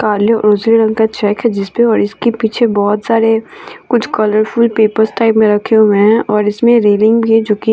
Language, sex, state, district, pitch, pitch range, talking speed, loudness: Hindi, female, Bihar, Vaishali, 220 Hz, 210-230 Hz, 200 wpm, -12 LUFS